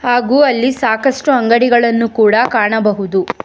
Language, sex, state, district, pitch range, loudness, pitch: Kannada, female, Karnataka, Bangalore, 220-255 Hz, -12 LUFS, 235 Hz